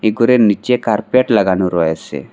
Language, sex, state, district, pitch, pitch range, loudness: Bengali, male, Assam, Hailakandi, 110 Hz, 95-120 Hz, -14 LUFS